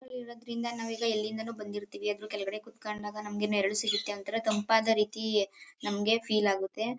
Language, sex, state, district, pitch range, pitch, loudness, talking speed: Kannada, female, Karnataka, Mysore, 205-225 Hz, 215 Hz, -31 LUFS, 155 wpm